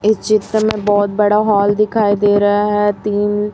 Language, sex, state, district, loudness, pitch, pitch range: Hindi, female, Chhattisgarh, Raipur, -14 LUFS, 210 Hz, 205-215 Hz